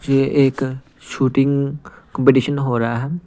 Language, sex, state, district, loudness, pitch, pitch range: Hindi, male, Punjab, Pathankot, -18 LUFS, 135 Hz, 130-140 Hz